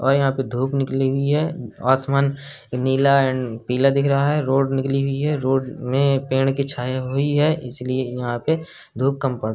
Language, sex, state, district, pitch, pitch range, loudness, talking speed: Hindi, male, Uttar Pradesh, Hamirpur, 135 Hz, 130-140 Hz, -21 LUFS, 200 wpm